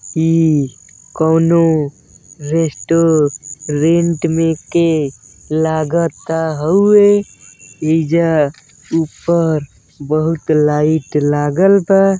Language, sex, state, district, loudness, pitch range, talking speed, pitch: Bhojpuri, male, Uttar Pradesh, Deoria, -14 LUFS, 150-165 Hz, 70 wpm, 160 Hz